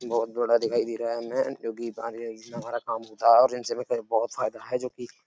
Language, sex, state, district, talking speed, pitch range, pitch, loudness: Hindi, male, Uttar Pradesh, Etah, 250 wpm, 115-120 Hz, 115 Hz, -27 LUFS